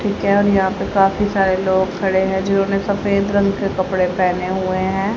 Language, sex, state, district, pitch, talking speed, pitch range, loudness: Hindi, female, Haryana, Charkhi Dadri, 195 Hz, 210 wpm, 190-200 Hz, -17 LUFS